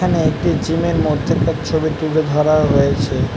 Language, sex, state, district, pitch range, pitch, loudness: Bengali, male, West Bengal, North 24 Parganas, 140-160 Hz, 155 Hz, -16 LUFS